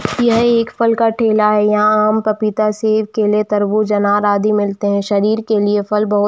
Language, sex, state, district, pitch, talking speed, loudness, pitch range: Hindi, female, Jharkhand, Jamtara, 210 Hz, 210 wpm, -15 LUFS, 205-220 Hz